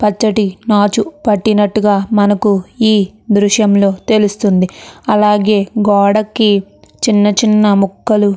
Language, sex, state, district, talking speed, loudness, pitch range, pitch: Telugu, female, Andhra Pradesh, Chittoor, 95 wpm, -12 LUFS, 200-215 Hz, 210 Hz